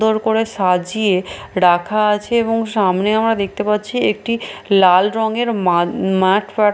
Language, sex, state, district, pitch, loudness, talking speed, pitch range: Bengali, female, Bihar, Katihar, 210 Hz, -16 LUFS, 150 wpm, 190-220 Hz